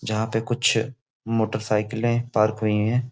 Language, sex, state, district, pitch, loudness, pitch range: Hindi, male, Uttar Pradesh, Gorakhpur, 110 Hz, -23 LUFS, 110-120 Hz